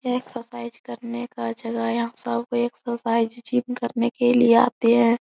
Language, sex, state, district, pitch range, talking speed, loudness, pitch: Hindi, female, Bihar, Supaul, 230-240 Hz, 175 wpm, -23 LUFS, 235 Hz